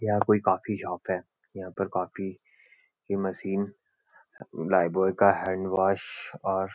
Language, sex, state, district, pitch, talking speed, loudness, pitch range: Hindi, male, Uttarakhand, Uttarkashi, 95 Hz, 135 wpm, -28 LUFS, 95-100 Hz